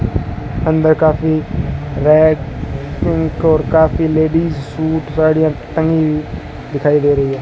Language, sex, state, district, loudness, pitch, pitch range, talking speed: Hindi, male, Rajasthan, Bikaner, -15 LUFS, 155 Hz, 145-160 Hz, 105 wpm